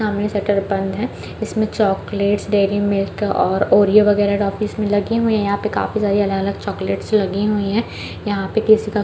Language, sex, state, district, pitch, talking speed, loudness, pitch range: Hindi, female, Chhattisgarh, Balrampur, 205 Hz, 185 wpm, -18 LUFS, 200-215 Hz